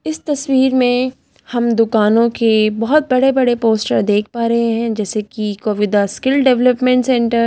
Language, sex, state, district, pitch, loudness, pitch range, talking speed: Hindi, female, Delhi, New Delhi, 235 Hz, -15 LUFS, 220-255 Hz, 160 wpm